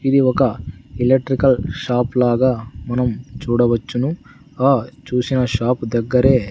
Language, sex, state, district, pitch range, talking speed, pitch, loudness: Telugu, male, Andhra Pradesh, Sri Satya Sai, 120-130 Hz, 100 wpm, 125 Hz, -18 LUFS